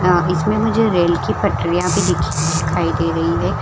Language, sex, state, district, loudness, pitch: Hindi, female, Bihar, Madhepura, -17 LUFS, 175 Hz